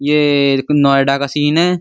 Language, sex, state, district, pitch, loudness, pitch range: Hindi, male, Uttar Pradesh, Muzaffarnagar, 145 Hz, -13 LUFS, 140-150 Hz